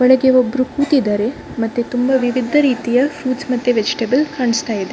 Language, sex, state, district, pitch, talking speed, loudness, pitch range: Kannada, female, Karnataka, Dakshina Kannada, 250 Hz, 145 wpm, -16 LUFS, 235-260 Hz